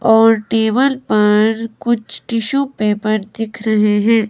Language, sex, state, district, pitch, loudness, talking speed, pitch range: Hindi, female, Himachal Pradesh, Shimla, 225 Hz, -15 LUFS, 125 wpm, 215-230 Hz